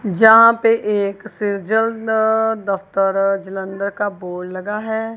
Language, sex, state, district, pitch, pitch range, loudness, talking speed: Hindi, female, Punjab, Kapurthala, 205 Hz, 195-220 Hz, -17 LUFS, 130 wpm